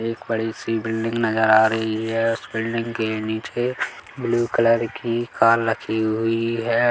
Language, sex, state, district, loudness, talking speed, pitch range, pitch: Hindi, male, Chhattisgarh, Kabirdham, -22 LUFS, 165 wpm, 110-115 Hz, 115 Hz